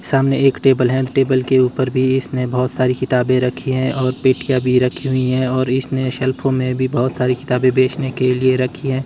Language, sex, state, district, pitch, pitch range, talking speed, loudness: Hindi, male, Himachal Pradesh, Shimla, 130 Hz, 125-130 Hz, 230 wpm, -17 LUFS